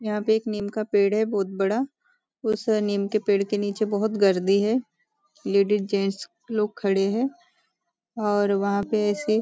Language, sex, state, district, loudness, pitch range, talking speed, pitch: Hindi, female, Maharashtra, Nagpur, -24 LUFS, 200-220 Hz, 180 wpm, 210 Hz